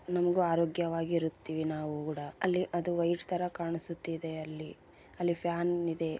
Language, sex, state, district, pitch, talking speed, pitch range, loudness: Kannada, female, Karnataka, Bellary, 170 Hz, 135 wpm, 160-175 Hz, -33 LUFS